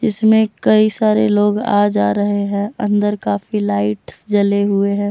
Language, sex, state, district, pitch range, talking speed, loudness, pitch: Hindi, female, Jharkhand, Deoghar, 200-215 Hz, 165 wpm, -16 LUFS, 205 Hz